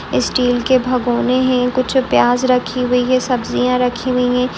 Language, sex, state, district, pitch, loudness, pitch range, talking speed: Hindi, female, Uttar Pradesh, Etah, 250 Hz, -16 LUFS, 245-255 Hz, 170 wpm